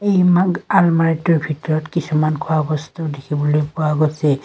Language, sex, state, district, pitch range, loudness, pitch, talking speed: Assamese, female, Assam, Kamrup Metropolitan, 150-165 Hz, -18 LUFS, 155 Hz, 110 wpm